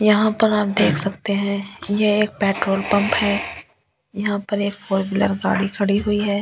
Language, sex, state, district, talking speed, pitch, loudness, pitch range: Hindi, female, Delhi, New Delhi, 185 wpm, 205 Hz, -20 LUFS, 200-210 Hz